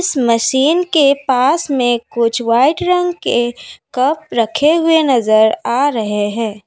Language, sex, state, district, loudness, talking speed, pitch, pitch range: Hindi, female, Assam, Kamrup Metropolitan, -14 LUFS, 125 wpm, 255 Hz, 230-305 Hz